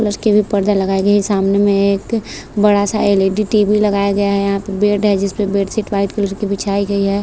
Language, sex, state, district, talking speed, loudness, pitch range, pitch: Hindi, female, Maharashtra, Chandrapur, 240 wpm, -15 LUFS, 200-210 Hz, 200 Hz